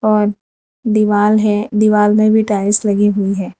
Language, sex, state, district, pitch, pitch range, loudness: Hindi, female, Gujarat, Valsad, 210 Hz, 205-215 Hz, -14 LUFS